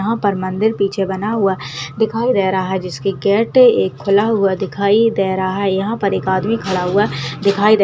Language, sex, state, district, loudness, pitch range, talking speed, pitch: Hindi, female, Uttarakhand, Uttarkashi, -16 LUFS, 190-215 Hz, 220 wpm, 195 Hz